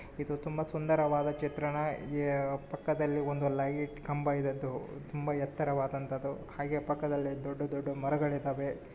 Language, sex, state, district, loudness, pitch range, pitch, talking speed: Kannada, male, Karnataka, Bijapur, -34 LUFS, 140-150 Hz, 145 Hz, 120 wpm